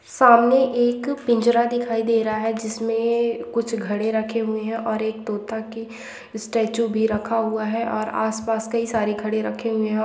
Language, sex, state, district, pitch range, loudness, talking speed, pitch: Hindi, female, Andhra Pradesh, Anantapur, 220-235 Hz, -22 LUFS, 185 wpm, 225 Hz